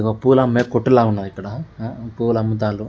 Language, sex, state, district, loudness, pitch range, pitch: Telugu, male, Telangana, Karimnagar, -18 LUFS, 110-120 Hz, 115 Hz